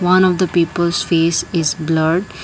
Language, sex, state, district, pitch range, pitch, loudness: English, female, Assam, Kamrup Metropolitan, 165-180 Hz, 170 Hz, -16 LUFS